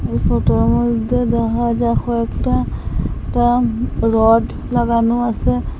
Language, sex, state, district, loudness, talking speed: Bengali, female, Assam, Hailakandi, -17 LUFS, 115 wpm